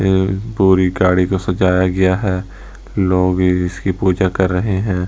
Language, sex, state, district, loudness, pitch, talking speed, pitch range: Hindi, male, Delhi, New Delhi, -16 LUFS, 95 Hz, 155 wpm, 90-95 Hz